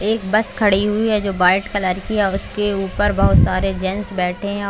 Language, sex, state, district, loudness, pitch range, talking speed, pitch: Hindi, female, Chhattisgarh, Bilaspur, -18 LUFS, 190-210 Hz, 240 wpm, 200 Hz